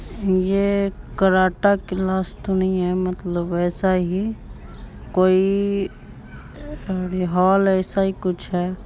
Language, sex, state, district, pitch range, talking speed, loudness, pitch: Hindi, male, Bihar, Supaul, 180-195 Hz, 110 wpm, -21 LUFS, 185 Hz